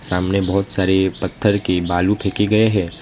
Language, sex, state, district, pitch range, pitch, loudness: Hindi, male, West Bengal, Alipurduar, 90-100 Hz, 95 Hz, -18 LUFS